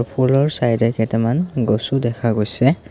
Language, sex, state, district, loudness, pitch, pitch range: Assamese, male, Assam, Kamrup Metropolitan, -18 LUFS, 120 Hz, 115-135 Hz